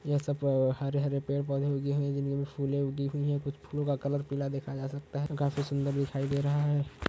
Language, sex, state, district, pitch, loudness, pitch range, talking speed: Hindi, male, Uttar Pradesh, Budaun, 140 Hz, -32 LUFS, 140-145 Hz, 235 wpm